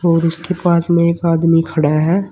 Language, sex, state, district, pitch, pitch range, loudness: Hindi, male, Uttar Pradesh, Saharanpur, 170 Hz, 165-175 Hz, -15 LUFS